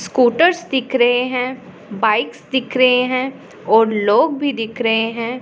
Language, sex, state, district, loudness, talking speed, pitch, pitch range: Hindi, female, Punjab, Pathankot, -17 LUFS, 155 wpm, 250 Hz, 225-260 Hz